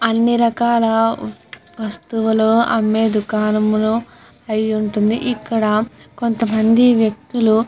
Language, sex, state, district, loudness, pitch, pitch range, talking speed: Telugu, female, Andhra Pradesh, Guntur, -17 LUFS, 220 Hz, 215-230 Hz, 95 wpm